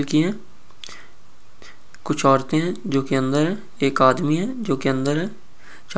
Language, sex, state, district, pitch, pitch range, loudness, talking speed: Hindi, male, Chhattisgarh, Bastar, 150 Hz, 135-180 Hz, -21 LUFS, 240 wpm